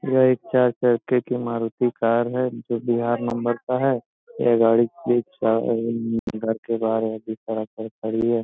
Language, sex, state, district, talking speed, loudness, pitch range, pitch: Hindi, male, Bihar, Gopalganj, 185 wpm, -23 LUFS, 115-120 Hz, 115 Hz